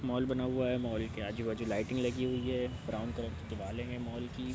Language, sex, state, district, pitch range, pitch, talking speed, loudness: Hindi, male, Bihar, Araria, 110-125 Hz, 120 Hz, 250 wpm, -36 LUFS